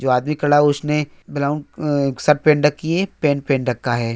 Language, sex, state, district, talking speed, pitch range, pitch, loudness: Hindi, male, Andhra Pradesh, Anantapur, 175 wpm, 135-150 Hz, 145 Hz, -19 LUFS